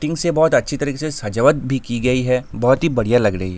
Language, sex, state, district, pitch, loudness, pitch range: Hindi, male, Jharkhand, Sahebganj, 130 Hz, -18 LUFS, 120-150 Hz